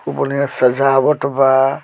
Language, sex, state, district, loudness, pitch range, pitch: Bhojpuri, male, Bihar, Muzaffarpur, -15 LUFS, 135-140 Hz, 135 Hz